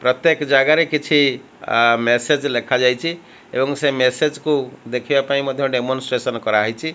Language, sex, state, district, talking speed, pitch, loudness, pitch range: Odia, male, Odisha, Malkangiri, 105 wpm, 135 Hz, -18 LUFS, 125-150 Hz